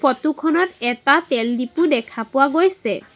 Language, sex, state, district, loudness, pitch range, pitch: Assamese, female, Assam, Sonitpur, -18 LUFS, 245-325 Hz, 275 Hz